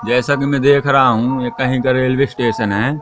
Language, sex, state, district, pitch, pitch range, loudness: Hindi, male, Madhya Pradesh, Katni, 130 Hz, 120-140 Hz, -15 LUFS